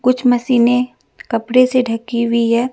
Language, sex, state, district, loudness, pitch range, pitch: Hindi, female, Bihar, West Champaran, -15 LUFS, 235-255 Hz, 245 Hz